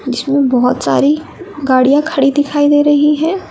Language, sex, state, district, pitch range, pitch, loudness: Hindi, female, Uttar Pradesh, Lalitpur, 275-300 Hz, 290 Hz, -12 LUFS